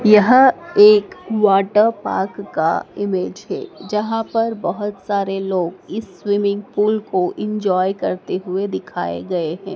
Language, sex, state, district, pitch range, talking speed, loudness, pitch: Hindi, female, Madhya Pradesh, Dhar, 190-220 Hz, 135 wpm, -18 LUFS, 205 Hz